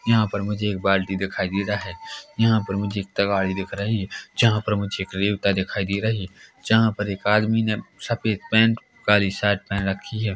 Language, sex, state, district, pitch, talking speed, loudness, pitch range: Hindi, male, Chhattisgarh, Korba, 100 Hz, 210 wpm, -23 LUFS, 100-110 Hz